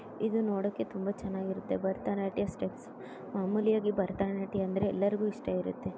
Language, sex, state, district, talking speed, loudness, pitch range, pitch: Kannada, female, Karnataka, Bellary, 140 wpm, -33 LUFS, 190-210 Hz, 195 Hz